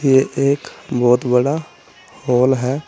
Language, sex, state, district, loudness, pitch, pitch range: Hindi, male, Uttar Pradesh, Saharanpur, -17 LUFS, 130 Hz, 125-140 Hz